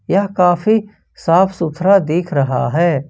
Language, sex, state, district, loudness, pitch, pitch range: Hindi, male, Jharkhand, Ranchi, -15 LUFS, 175 Hz, 165-195 Hz